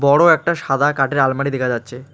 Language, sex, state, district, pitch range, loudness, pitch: Bengali, male, West Bengal, Alipurduar, 130-145 Hz, -17 LUFS, 140 Hz